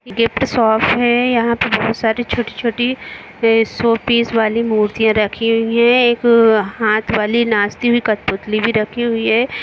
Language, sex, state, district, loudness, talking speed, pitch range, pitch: Hindi, female, Jharkhand, Jamtara, -15 LUFS, 160 wpm, 220-235 Hz, 230 Hz